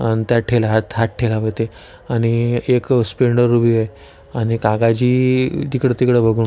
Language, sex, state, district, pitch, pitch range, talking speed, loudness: Marathi, male, Maharashtra, Nagpur, 115 Hz, 115-125 Hz, 130 wpm, -17 LUFS